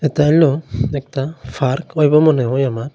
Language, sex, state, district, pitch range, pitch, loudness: Bengali, male, Tripura, Unakoti, 130-150 Hz, 140 Hz, -16 LUFS